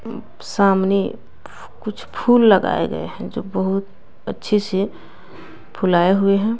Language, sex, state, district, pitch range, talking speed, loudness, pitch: Hindi, female, Bihar, West Champaran, 195-215 Hz, 120 wpm, -19 LUFS, 200 Hz